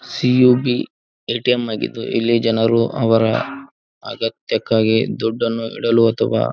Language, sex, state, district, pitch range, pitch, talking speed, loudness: Kannada, male, Karnataka, Gulbarga, 115-125 Hz, 115 Hz, 90 wpm, -18 LUFS